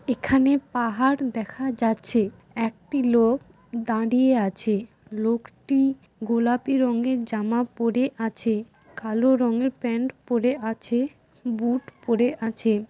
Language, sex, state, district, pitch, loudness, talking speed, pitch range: Bengali, female, West Bengal, Dakshin Dinajpur, 235 Hz, -24 LUFS, 80 wpm, 225-255 Hz